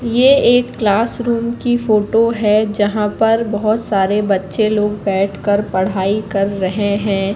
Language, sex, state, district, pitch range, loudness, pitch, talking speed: Hindi, female, Madhya Pradesh, Katni, 200-230 Hz, -15 LUFS, 210 Hz, 145 wpm